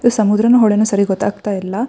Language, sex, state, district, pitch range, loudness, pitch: Kannada, female, Karnataka, Shimoga, 200-230 Hz, -14 LUFS, 210 Hz